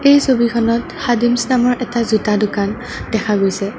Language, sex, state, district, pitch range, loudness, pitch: Assamese, female, Assam, Sonitpur, 210-245 Hz, -16 LUFS, 235 Hz